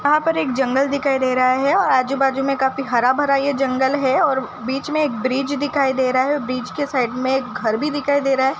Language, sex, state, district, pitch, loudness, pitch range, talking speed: Hindi, female, Uttarakhand, Tehri Garhwal, 265 Hz, -19 LUFS, 255-285 Hz, 260 wpm